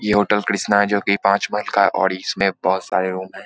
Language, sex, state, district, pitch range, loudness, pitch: Hindi, male, Bihar, Lakhisarai, 95-105 Hz, -19 LUFS, 100 Hz